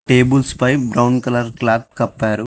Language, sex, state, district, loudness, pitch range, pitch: Telugu, male, Telangana, Mahabubabad, -16 LUFS, 115-125 Hz, 120 Hz